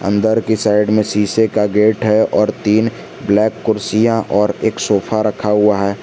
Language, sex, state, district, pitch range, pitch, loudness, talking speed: Hindi, male, Jharkhand, Garhwa, 105-110 Hz, 105 Hz, -15 LUFS, 180 wpm